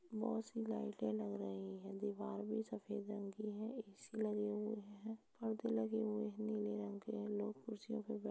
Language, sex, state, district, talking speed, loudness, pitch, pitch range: Hindi, female, Uttar Pradesh, Etah, 200 wpm, -44 LUFS, 215 Hz, 205-220 Hz